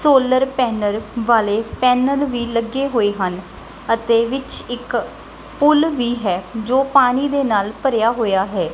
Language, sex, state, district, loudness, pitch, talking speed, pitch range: Punjabi, female, Punjab, Kapurthala, -18 LUFS, 240 Hz, 145 wpm, 215-265 Hz